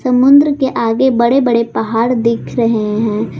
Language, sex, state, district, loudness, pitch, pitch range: Hindi, female, Jharkhand, Garhwa, -13 LUFS, 235 Hz, 230-260 Hz